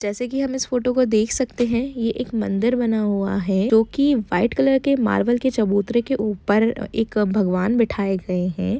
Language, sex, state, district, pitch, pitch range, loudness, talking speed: Hindi, female, Jharkhand, Jamtara, 225 Hz, 205-250 Hz, -20 LUFS, 190 wpm